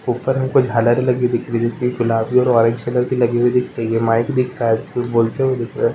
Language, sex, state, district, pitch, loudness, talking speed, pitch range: Hindi, male, Karnataka, Gulbarga, 120 Hz, -17 LUFS, 210 wpm, 115-125 Hz